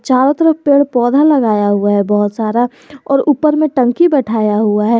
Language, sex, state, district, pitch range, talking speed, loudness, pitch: Hindi, male, Jharkhand, Garhwa, 215-290 Hz, 190 wpm, -12 LUFS, 250 Hz